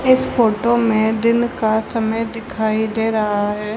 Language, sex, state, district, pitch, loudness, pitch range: Hindi, female, Haryana, Charkhi Dadri, 225 Hz, -18 LUFS, 220-230 Hz